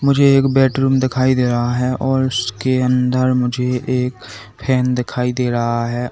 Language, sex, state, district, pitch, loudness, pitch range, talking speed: Hindi, male, Uttar Pradesh, Saharanpur, 125 Hz, -17 LUFS, 120-130 Hz, 165 wpm